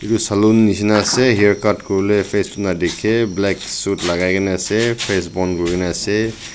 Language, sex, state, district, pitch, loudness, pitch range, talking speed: Nagamese, male, Nagaland, Dimapur, 100 Hz, -17 LUFS, 95-110 Hz, 185 wpm